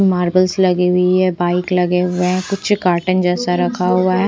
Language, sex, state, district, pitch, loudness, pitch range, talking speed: Hindi, female, Punjab, Pathankot, 180 Hz, -16 LUFS, 180-185 Hz, 195 wpm